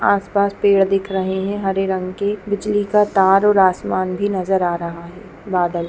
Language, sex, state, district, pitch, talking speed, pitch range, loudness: Hindi, female, Chhattisgarh, Raigarh, 195 Hz, 195 wpm, 185-200 Hz, -18 LUFS